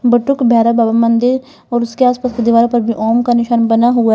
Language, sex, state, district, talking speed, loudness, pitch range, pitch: Hindi, female, Uttar Pradesh, Lalitpur, 230 wpm, -13 LUFS, 230-245 Hz, 235 Hz